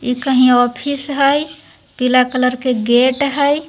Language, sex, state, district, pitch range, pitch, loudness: Hindi, female, Bihar, Jahanabad, 250-285 Hz, 255 Hz, -15 LUFS